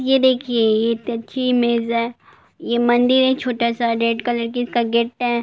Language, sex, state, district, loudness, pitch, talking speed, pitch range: Hindi, female, Bihar, Gopalganj, -19 LUFS, 235 Hz, 165 wpm, 230-245 Hz